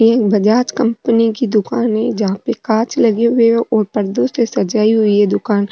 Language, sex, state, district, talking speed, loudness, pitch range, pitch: Rajasthani, female, Rajasthan, Nagaur, 210 wpm, -14 LUFS, 210-235 Hz, 225 Hz